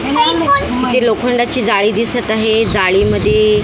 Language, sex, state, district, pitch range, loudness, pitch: Marathi, female, Maharashtra, Mumbai Suburban, 215-250 Hz, -13 LUFS, 230 Hz